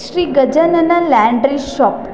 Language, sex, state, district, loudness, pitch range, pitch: Kannada, female, Karnataka, Chamarajanagar, -13 LUFS, 275-335 Hz, 290 Hz